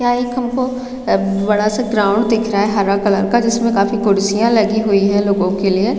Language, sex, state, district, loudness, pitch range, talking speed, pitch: Hindi, female, Chhattisgarh, Raigarh, -15 LUFS, 200-230 Hz, 220 wpm, 210 Hz